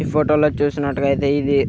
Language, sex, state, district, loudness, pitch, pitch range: Telugu, male, Andhra Pradesh, Krishna, -18 LUFS, 145 Hz, 140-150 Hz